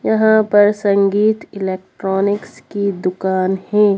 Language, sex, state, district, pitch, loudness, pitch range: Hindi, female, Bihar, Lakhisarai, 200 Hz, -16 LUFS, 190-210 Hz